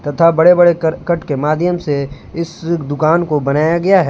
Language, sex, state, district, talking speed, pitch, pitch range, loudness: Hindi, male, Jharkhand, Palamu, 190 wpm, 165 Hz, 150-170 Hz, -14 LUFS